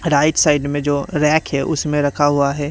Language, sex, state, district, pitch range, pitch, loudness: Hindi, male, Haryana, Rohtak, 145-150 Hz, 145 Hz, -17 LUFS